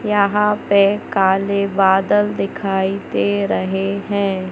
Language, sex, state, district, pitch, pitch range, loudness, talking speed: Hindi, male, Madhya Pradesh, Katni, 195 Hz, 190-200 Hz, -17 LUFS, 105 wpm